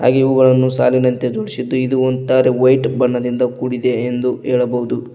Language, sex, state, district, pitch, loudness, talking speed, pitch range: Kannada, male, Karnataka, Koppal, 125 Hz, -15 LUFS, 130 wpm, 125-130 Hz